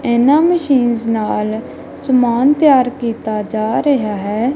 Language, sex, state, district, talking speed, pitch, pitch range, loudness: Punjabi, female, Punjab, Kapurthala, 120 wpm, 240 Hz, 220-270 Hz, -15 LUFS